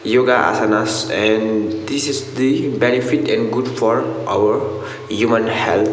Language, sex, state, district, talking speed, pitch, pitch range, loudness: English, male, Sikkim, Gangtok, 130 wpm, 115 Hz, 110-130 Hz, -17 LUFS